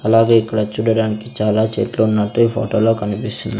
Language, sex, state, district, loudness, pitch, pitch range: Telugu, male, Andhra Pradesh, Sri Satya Sai, -17 LUFS, 110 Hz, 110-115 Hz